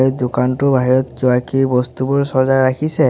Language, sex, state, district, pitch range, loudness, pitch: Assamese, male, Assam, Sonitpur, 125-135 Hz, -16 LUFS, 130 Hz